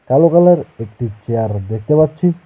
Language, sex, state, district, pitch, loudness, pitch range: Bengali, male, West Bengal, Alipurduar, 135 Hz, -15 LUFS, 110-170 Hz